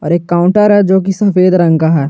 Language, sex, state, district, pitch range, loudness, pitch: Hindi, male, Jharkhand, Garhwa, 170-195 Hz, -10 LUFS, 180 Hz